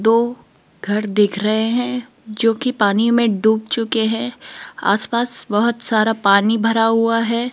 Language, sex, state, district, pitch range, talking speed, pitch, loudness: Hindi, female, Rajasthan, Jaipur, 215-235 Hz, 150 wpm, 225 Hz, -17 LUFS